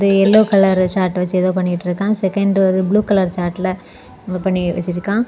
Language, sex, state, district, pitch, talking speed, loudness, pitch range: Tamil, female, Tamil Nadu, Kanyakumari, 185 Hz, 160 wpm, -16 LUFS, 180-195 Hz